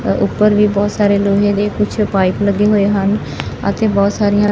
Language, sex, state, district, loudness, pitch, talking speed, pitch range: Punjabi, male, Punjab, Fazilka, -14 LUFS, 205 Hz, 185 wpm, 200-210 Hz